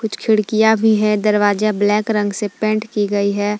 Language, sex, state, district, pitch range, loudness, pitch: Hindi, female, Jharkhand, Palamu, 205-215 Hz, -16 LUFS, 210 Hz